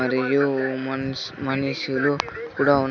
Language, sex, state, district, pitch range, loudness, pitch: Telugu, male, Andhra Pradesh, Sri Satya Sai, 130-140 Hz, -24 LUFS, 135 Hz